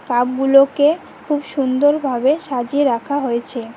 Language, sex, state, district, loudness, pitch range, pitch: Bengali, female, West Bengal, Cooch Behar, -17 LUFS, 245-290 Hz, 275 Hz